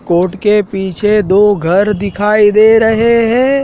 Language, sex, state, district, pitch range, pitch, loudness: Hindi, male, Madhya Pradesh, Dhar, 195-225 Hz, 210 Hz, -11 LUFS